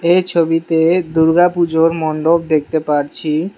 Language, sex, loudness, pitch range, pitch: Bengali, male, -15 LUFS, 160-170 Hz, 165 Hz